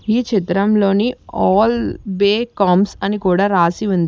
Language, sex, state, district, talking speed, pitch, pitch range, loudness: Telugu, female, Telangana, Hyderabad, 130 wpm, 200 Hz, 190-215 Hz, -16 LUFS